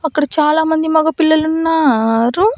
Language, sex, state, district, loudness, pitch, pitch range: Telugu, female, Andhra Pradesh, Annamaya, -14 LUFS, 315 Hz, 300-320 Hz